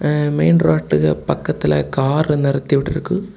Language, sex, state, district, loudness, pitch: Tamil, male, Tamil Nadu, Kanyakumari, -17 LUFS, 135 Hz